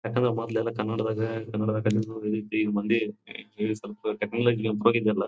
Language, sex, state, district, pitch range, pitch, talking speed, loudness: Kannada, male, Karnataka, Bijapur, 105-115 Hz, 110 Hz, 90 wpm, -27 LUFS